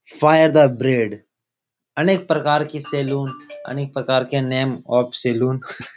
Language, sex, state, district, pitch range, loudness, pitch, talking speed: Hindi, male, Bihar, Supaul, 130-150 Hz, -19 LUFS, 135 Hz, 140 wpm